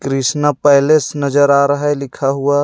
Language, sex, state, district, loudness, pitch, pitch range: Hindi, male, Jharkhand, Ranchi, -14 LUFS, 140 Hz, 140-145 Hz